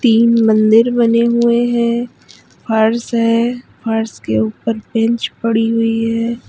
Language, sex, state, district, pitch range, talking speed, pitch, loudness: Hindi, female, Uttar Pradesh, Lalitpur, 225-235 Hz, 130 wpm, 230 Hz, -15 LUFS